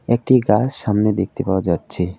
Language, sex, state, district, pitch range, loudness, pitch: Bengali, male, West Bengal, Alipurduar, 95-120 Hz, -18 LUFS, 105 Hz